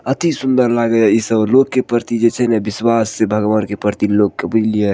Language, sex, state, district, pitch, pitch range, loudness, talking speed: Maithili, male, Bihar, Madhepura, 115 Hz, 105-120 Hz, -15 LUFS, 255 wpm